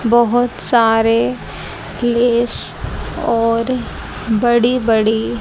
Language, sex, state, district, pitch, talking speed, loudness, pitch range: Hindi, female, Haryana, Jhajjar, 235 Hz, 65 wpm, -16 LUFS, 225-240 Hz